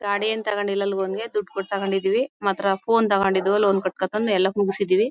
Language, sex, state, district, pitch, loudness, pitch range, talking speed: Kannada, female, Karnataka, Mysore, 200 Hz, -22 LUFS, 195-210 Hz, 165 wpm